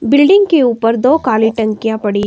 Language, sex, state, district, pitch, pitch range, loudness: Hindi, female, Himachal Pradesh, Shimla, 230 Hz, 220-285 Hz, -12 LUFS